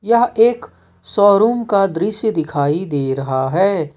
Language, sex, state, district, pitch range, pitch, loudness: Hindi, male, Jharkhand, Ranchi, 145-225 Hz, 195 Hz, -16 LUFS